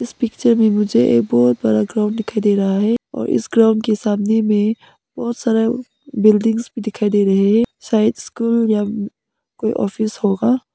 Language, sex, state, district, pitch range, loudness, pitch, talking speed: Hindi, female, Nagaland, Kohima, 205-230 Hz, -17 LUFS, 215 Hz, 180 wpm